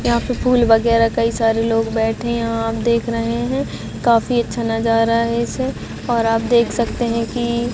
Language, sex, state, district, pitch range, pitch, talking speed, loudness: Hindi, female, Chhattisgarh, Raigarh, 225-235 Hz, 230 Hz, 195 wpm, -18 LUFS